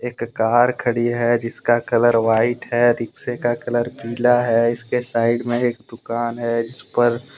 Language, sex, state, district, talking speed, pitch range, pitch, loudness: Hindi, male, Jharkhand, Deoghar, 180 wpm, 115-120 Hz, 120 Hz, -19 LUFS